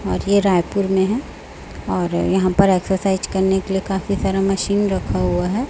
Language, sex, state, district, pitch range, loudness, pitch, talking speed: Hindi, male, Chhattisgarh, Raipur, 185-200 Hz, -19 LUFS, 190 Hz, 190 wpm